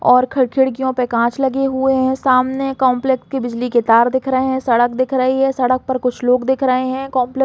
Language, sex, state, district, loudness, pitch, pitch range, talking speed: Hindi, female, Chhattisgarh, Balrampur, -16 LUFS, 260 Hz, 250-265 Hz, 240 wpm